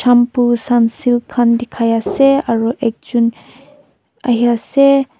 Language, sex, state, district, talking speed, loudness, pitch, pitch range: Nagamese, female, Nagaland, Dimapur, 105 wpm, -14 LUFS, 240 Hz, 235-260 Hz